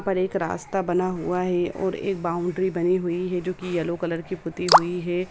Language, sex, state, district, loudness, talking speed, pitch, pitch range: Hindi, female, Bihar, Samastipur, -24 LUFS, 215 wpm, 180 Hz, 175-185 Hz